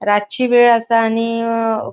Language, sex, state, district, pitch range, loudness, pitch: Konkani, female, Goa, North and South Goa, 225-235 Hz, -15 LUFS, 230 Hz